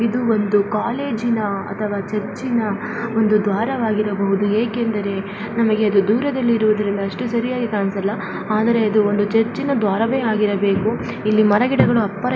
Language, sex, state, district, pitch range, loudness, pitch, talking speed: Kannada, female, Karnataka, Dakshina Kannada, 205-230 Hz, -19 LUFS, 215 Hz, 130 wpm